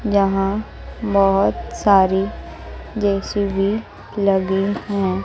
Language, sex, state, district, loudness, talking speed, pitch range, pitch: Hindi, female, Bihar, West Champaran, -19 LUFS, 70 wpm, 195-205 Hz, 195 Hz